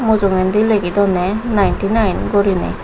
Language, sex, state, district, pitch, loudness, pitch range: Chakma, female, Tripura, Unakoti, 200 Hz, -15 LUFS, 195-215 Hz